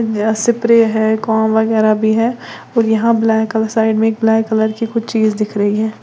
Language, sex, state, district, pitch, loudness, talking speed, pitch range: Hindi, female, Uttar Pradesh, Lalitpur, 220 Hz, -14 LUFS, 220 wpm, 220-225 Hz